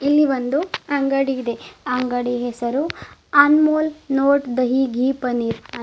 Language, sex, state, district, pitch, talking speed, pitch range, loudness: Kannada, female, Karnataka, Bidar, 270 Hz, 125 wpm, 245-285 Hz, -19 LUFS